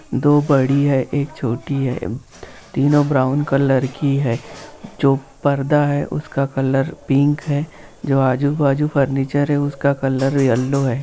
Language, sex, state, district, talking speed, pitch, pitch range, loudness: Hindi, male, Bihar, Jamui, 145 wpm, 140 Hz, 135-145 Hz, -18 LUFS